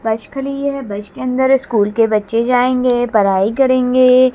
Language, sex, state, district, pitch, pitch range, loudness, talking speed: Hindi, female, Haryana, Jhajjar, 250 Hz, 220-255 Hz, -15 LUFS, 165 wpm